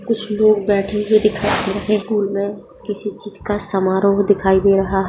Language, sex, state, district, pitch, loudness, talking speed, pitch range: Hindi, female, Bihar, Darbhanga, 205 Hz, -17 LUFS, 190 wpm, 195-210 Hz